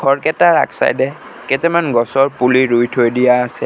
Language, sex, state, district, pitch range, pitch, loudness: Assamese, male, Assam, Sonitpur, 120-150 Hz, 130 Hz, -14 LUFS